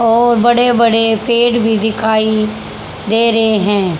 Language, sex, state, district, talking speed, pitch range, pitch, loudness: Hindi, female, Haryana, Jhajjar, 135 wpm, 215-235 Hz, 225 Hz, -12 LUFS